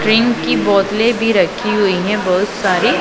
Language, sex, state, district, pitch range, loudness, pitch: Hindi, female, Punjab, Pathankot, 195-225 Hz, -14 LUFS, 205 Hz